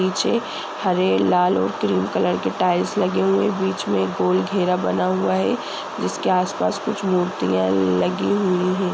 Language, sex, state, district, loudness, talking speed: Hindi, male, Uttar Pradesh, Budaun, -20 LUFS, 175 wpm